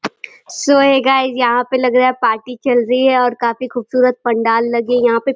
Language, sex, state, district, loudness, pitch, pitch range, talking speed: Hindi, female, Uttar Pradesh, Deoria, -14 LUFS, 250 Hz, 235-260 Hz, 235 wpm